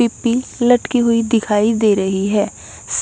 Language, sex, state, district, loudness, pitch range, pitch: Hindi, female, Punjab, Kapurthala, -16 LUFS, 195-240 Hz, 220 Hz